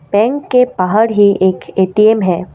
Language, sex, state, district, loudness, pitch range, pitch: Hindi, female, Assam, Kamrup Metropolitan, -12 LUFS, 185-225 Hz, 205 Hz